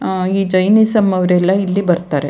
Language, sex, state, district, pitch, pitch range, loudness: Kannada, female, Karnataka, Dakshina Kannada, 185 Hz, 180-195 Hz, -14 LUFS